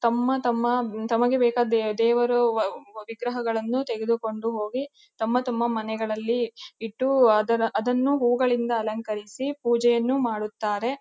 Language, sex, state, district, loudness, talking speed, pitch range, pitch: Kannada, female, Karnataka, Dharwad, -24 LUFS, 105 wpm, 225-245 Hz, 235 Hz